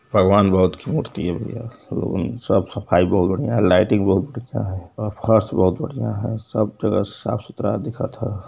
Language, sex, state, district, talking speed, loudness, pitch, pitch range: Hindi, male, Uttar Pradesh, Varanasi, 185 wpm, -20 LUFS, 105 Hz, 95-115 Hz